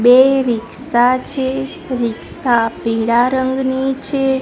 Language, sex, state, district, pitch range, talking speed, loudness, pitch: Gujarati, female, Gujarat, Gandhinagar, 240-265 Hz, 95 wpm, -16 LUFS, 260 Hz